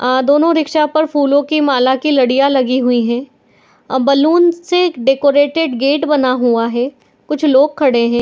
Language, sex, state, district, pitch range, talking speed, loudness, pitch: Hindi, female, Bihar, Madhepura, 255-300 Hz, 185 wpm, -13 LUFS, 275 Hz